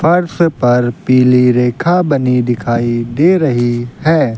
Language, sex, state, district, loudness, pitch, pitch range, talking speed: Hindi, male, Uttar Pradesh, Lucknow, -12 LUFS, 125 Hz, 120-160 Hz, 125 wpm